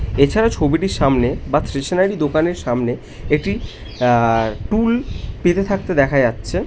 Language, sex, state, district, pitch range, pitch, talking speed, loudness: Bengali, male, West Bengal, North 24 Parganas, 120-185 Hz, 150 Hz, 135 wpm, -18 LUFS